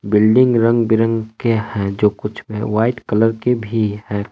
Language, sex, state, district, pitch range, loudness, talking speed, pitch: Hindi, male, Jharkhand, Palamu, 105-115 Hz, -17 LUFS, 180 wpm, 110 Hz